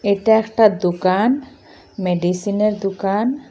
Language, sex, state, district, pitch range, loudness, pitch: Bengali, female, Assam, Hailakandi, 190-225 Hz, -18 LUFS, 205 Hz